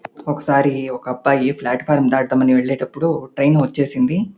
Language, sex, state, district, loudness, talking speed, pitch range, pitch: Telugu, male, Andhra Pradesh, Anantapur, -18 LUFS, 125 wpm, 130-150 Hz, 140 Hz